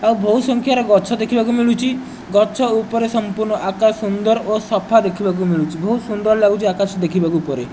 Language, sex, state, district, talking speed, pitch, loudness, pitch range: Odia, male, Odisha, Nuapada, 165 wpm, 215 Hz, -17 LUFS, 200-230 Hz